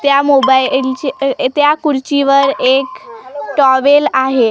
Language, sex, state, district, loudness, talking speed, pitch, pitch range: Marathi, female, Maharashtra, Gondia, -12 LUFS, 95 wpm, 275 Hz, 265-285 Hz